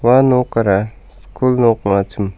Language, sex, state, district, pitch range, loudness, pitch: Garo, male, Meghalaya, South Garo Hills, 100-125 Hz, -15 LUFS, 115 Hz